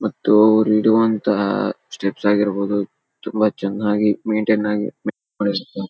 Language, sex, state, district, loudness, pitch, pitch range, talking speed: Kannada, male, Karnataka, Dharwad, -19 LUFS, 105 Hz, 100-110 Hz, 110 wpm